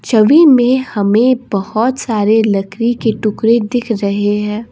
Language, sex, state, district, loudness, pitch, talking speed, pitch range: Hindi, female, Assam, Kamrup Metropolitan, -13 LUFS, 225 Hz, 140 wpm, 210-245 Hz